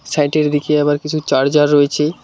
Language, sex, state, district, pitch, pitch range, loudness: Bengali, male, West Bengal, Cooch Behar, 150 Hz, 145-150 Hz, -15 LUFS